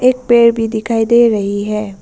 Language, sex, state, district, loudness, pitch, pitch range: Hindi, female, Arunachal Pradesh, Lower Dibang Valley, -13 LUFS, 225 Hz, 210-235 Hz